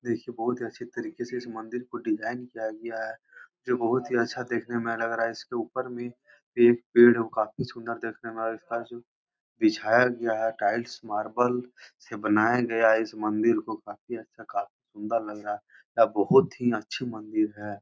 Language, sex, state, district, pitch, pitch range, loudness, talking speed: Hindi, male, Uttar Pradesh, Muzaffarnagar, 115 Hz, 110-120 Hz, -27 LUFS, 205 wpm